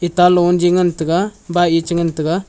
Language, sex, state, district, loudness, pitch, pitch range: Wancho, male, Arunachal Pradesh, Longding, -15 LUFS, 175 Hz, 170-180 Hz